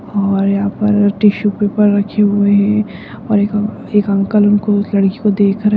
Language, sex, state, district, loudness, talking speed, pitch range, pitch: Hindi, female, Uttarakhand, Tehri Garhwal, -14 LUFS, 210 wpm, 200-210 Hz, 205 Hz